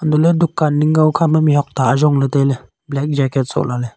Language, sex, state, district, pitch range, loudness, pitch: Wancho, male, Arunachal Pradesh, Longding, 135-155 Hz, -15 LUFS, 145 Hz